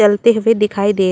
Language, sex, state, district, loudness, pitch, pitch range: Chhattisgarhi, female, Chhattisgarh, Raigarh, -14 LUFS, 210 Hz, 200-225 Hz